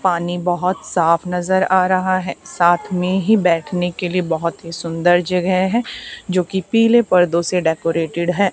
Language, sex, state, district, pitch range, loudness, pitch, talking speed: Hindi, female, Haryana, Charkhi Dadri, 170-185 Hz, -17 LUFS, 180 Hz, 175 wpm